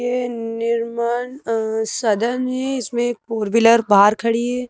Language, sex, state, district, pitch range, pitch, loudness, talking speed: Hindi, female, Madhya Pradesh, Bhopal, 225-245 Hz, 235 Hz, -19 LUFS, 140 wpm